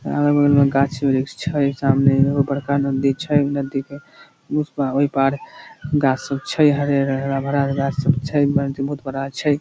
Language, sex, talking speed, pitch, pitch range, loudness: Maithili, male, 175 wpm, 140 Hz, 135-145 Hz, -19 LUFS